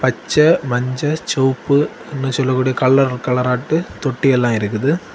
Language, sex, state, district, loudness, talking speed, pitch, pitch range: Tamil, male, Tamil Nadu, Kanyakumari, -17 LUFS, 105 wpm, 130 Hz, 125-140 Hz